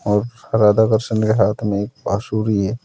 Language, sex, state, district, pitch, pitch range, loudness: Hindi, male, Uttar Pradesh, Saharanpur, 110 Hz, 105-110 Hz, -18 LUFS